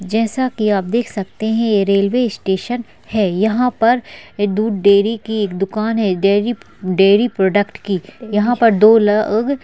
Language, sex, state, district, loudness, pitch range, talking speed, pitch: Hindi, female, Uttarakhand, Uttarkashi, -16 LUFS, 200-230 Hz, 170 wpm, 215 Hz